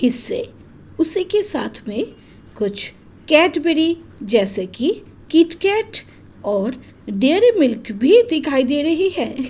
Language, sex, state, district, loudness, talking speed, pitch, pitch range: Hindi, female, Delhi, New Delhi, -18 LUFS, 120 wpm, 310 Hz, 245-365 Hz